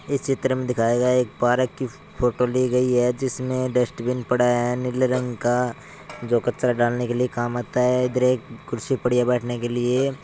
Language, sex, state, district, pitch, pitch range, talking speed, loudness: Hindi, male, Rajasthan, Churu, 125 Hz, 120-130 Hz, 205 wpm, -22 LUFS